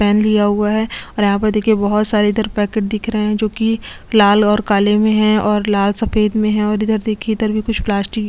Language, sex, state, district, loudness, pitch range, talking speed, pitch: Hindi, female, Chhattisgarh, Sukma, -16 LUFS, 210-215 Hz, 255 wpm, 215 Hz